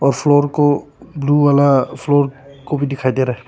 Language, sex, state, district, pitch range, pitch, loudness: Hindi, male, Arunachal Pradesh, Papum Pare, 135-145 Hz, 140 Hz, -16 LUFS